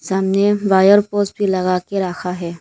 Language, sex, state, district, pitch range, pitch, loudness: Hindi, female, Arunachal Pradesh, Lower Dibang Valley, 185-200 Hz, 190 Hz, -16 LUFS